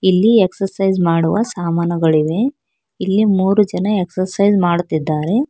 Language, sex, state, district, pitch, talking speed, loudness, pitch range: Kannada, female, Karnataka, Bangalore, 190 Hz, 100 wpm, -16 LUFS, 170-205 Hz